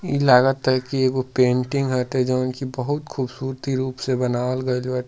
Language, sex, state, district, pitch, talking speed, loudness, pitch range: Bhojpuri, male, Uttar Pradesh, Deoria, 130 Hz, 175 wpm, -21 LUFS, 125-135 Hz